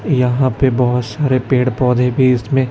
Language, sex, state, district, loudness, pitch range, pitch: Hindi, male, Chhattisgarh, Raipur, -15 LUFS, 125-130 Hz, 130 Hz